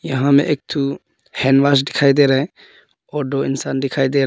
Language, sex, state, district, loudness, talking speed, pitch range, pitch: Hindi, female, Arunachal Pradesh, Papum Pare, -17 LUFS, 225 wpm, 135-140 Hz, 140 Hz